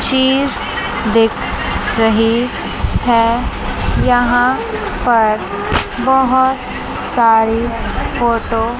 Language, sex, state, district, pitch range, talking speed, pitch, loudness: Hindi, female, Chandigarh, Chandigarh, 225-250 Hz, 70 wpm, 235 Hz, -15 LUFS